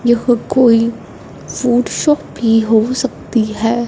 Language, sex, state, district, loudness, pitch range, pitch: Hindi, female, Punjab, Fazilka, -14 LUFS, 225-245 Hz, 235 Hz